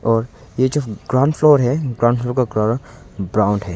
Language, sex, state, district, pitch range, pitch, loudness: Hindi, male, Arunachal Pradesh, Longding, 110-130 Hz, 120 Hz, -18 LUFS